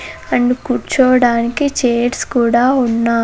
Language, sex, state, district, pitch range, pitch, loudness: Telugu, female, Andhra Pradesh, Sri Satya Sai, 235-255 Hz, 245 Hz, -14 LUFS